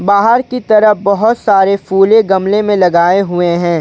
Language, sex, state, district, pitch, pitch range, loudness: Hindi, male, Jharkhand, Ranchi, 200 Hz, 190-215 Hz, -11 LUFS